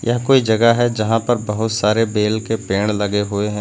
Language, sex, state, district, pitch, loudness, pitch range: Hindi, male, Uttar Pradesh, Lucknow, 110 Hz, -17 LUFS, 105-115 Hz